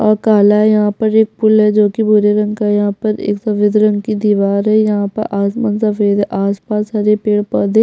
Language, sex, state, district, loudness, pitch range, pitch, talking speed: Hindi, female, Chhattisgarh, Jashpur, -13 LUFS, 205-215 Hz, 210 Hz, 245 wpm